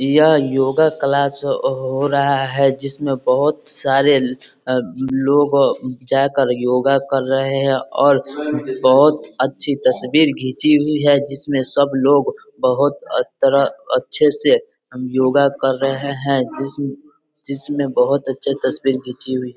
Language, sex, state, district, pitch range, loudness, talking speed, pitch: Hindi, male, Bihar, East Champaran, 135-145 Hz, -17 LUFS, 140 wpm, 140 Hz